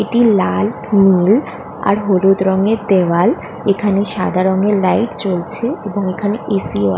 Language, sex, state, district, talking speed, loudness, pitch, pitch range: Bengali, female, West Bengal, Kolkata, 145 wpm, -15 LUFS, 200 Hz, 190-210 Hz